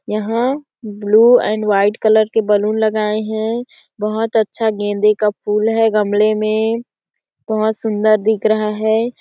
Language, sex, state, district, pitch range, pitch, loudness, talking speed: Hindi, female, Chhattisgarh, Sarguja, 210-225 Hz, 215 Hz, -16 LUFS, 145 wpm